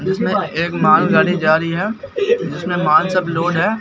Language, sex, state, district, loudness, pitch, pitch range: Hindi, male, Bihar, Katihar, -16 LUFS, 180 Hz, 170-205 Hz